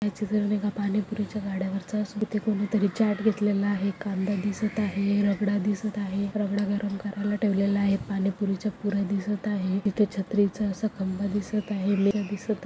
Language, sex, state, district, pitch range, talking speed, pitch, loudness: Marathi, female, Maharashtra, Sindhudurg, 200-210 Hz, 195 wpm, 205 Hz, -27 LUFS